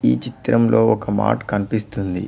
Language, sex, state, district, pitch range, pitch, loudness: Telugu, male, Telangana, Mahabubabad, 100-115 Hz, 105 Hz, -19 LUFS